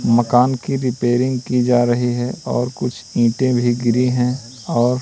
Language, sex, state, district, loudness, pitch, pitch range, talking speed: Hindi, male, Madhya Pradesh, Katni, -18 LUFS, 125 Hz, 120-125 Hz, 165 wpm